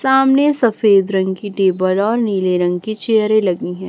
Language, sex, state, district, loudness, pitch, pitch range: Hindi, female, Chhattisgarh, Raipur, -15 LUFS, 205 Hz, 190-225 Hz